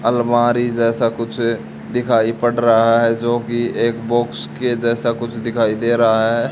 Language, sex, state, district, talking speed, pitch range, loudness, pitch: Hindi, male, Haryana, Charkhi Dadri, 165 wpm, 115-120 Hz, -17 LUFS, 115 Hz